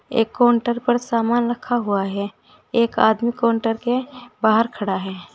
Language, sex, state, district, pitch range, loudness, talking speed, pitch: Hindi, female, Uttar Pradesh, Saharanpur, 220-240 Hz, -20 LUFS, 155 wpm, 235 Hz